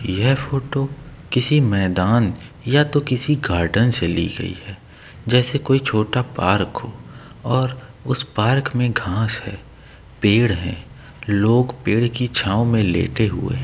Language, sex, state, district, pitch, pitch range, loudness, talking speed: Hindi, male, Chhattisgarh, Raigarh, 120 Hz, 105-135 Hz, -19 LUFS, 135 wpm